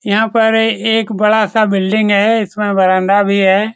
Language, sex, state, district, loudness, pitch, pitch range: Hindi, male, Bihar, Saran, -12 LUFS, 210 Hz, 200-225 Hz